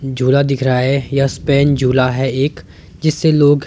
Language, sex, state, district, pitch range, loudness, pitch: Hindi, male, Himachal Pradesh, Shimla, 130-145 Hz, -15 LUFS, 135 Hz